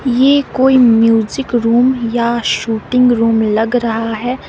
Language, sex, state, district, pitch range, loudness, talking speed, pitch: Hindi, female, Himachal Pradesh, Shimla, 225-255 Hz, -13 LUFS, 135 wpm, 235 Hz